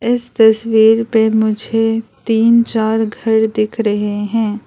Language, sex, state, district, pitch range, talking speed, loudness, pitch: Hindi, female, Arunachal Pradesh, Lower Dibang Valley, 215-225 Hz, 130 wpm, -14 LUFS, 220 Hz